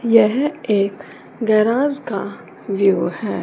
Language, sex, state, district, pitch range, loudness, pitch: Hindi, female, Punjab, Fazilka, 200-245 Hz, -18 LUFS, 215 Hz